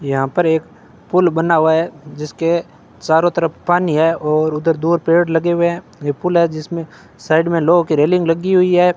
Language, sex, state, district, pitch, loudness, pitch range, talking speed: Hindi, male, Rajasthan, Bikaner, 165 Hz, -16 LUFS, 155-170 Hz, 205 wpm